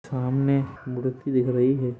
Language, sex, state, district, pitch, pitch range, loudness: Hindi, male, Jharkhand, Jamtara, 130 Hz, 125-135 Hz, -24 LUFS